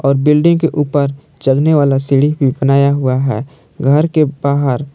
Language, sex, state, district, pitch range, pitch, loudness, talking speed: Hindi, male, Jharkhand, Palamu, 135-150 Hz, 140 Hz, -13 LUFS, 170 wpm